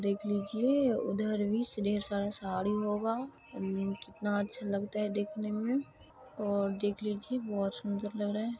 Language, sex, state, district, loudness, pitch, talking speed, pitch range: Maithili, female, Bihar, Supaul, -34 LUFS, 210 Hz, 160 wpm, 200-220 Hz